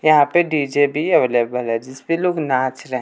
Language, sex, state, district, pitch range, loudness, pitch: Hindi, male, Bihar, West Champaran, 130-155 Hz, -18 LUFS, 140 Hz